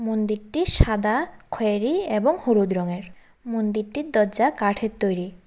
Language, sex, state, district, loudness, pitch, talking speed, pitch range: Bengali, female, Tripura, West Tripura, -23 LUFS, 215 Hz, 110 wpm, 205-230 Hz